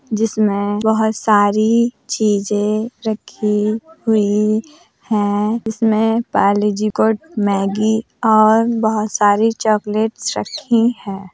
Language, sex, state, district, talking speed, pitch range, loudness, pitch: Hindi, female, Uttar Pradesh, Hamirpur, 90 wpm, 210-225 Hz, -16 LUFS, 215 Hz